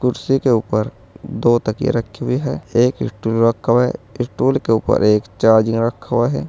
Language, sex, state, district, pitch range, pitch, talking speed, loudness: Hindi, male, Uttar Pradesh, Saharanpur, 110-125 Hz, 115 Hz, 195 wpm, -17 LUFS